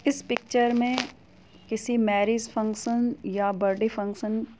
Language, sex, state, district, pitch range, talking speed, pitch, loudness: Hindi, female, Uttar Pradesh, Jyotiba Phule Nagar, 210-240 Hz, 130 wpm, 225 Hz, -26 LUFS